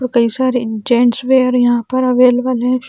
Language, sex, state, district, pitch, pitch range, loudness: Hindi, female, Chhattisgarh, Balrampur, 250 Hz, 240-255 Hz, -14 LUFS